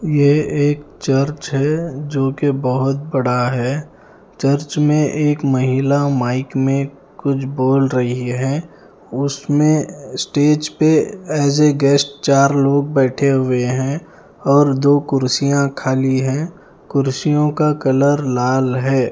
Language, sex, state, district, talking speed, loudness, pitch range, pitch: Hindi, male, Himachal Pradesh, Shimla, 125 wpm, -17 LUFS, 130-145 Hz, 140 Hz